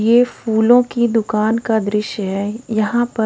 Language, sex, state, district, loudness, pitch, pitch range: Hindi, female, Odisha, Khordha, -17 LUFS, 220 Hz, 215-240 Hz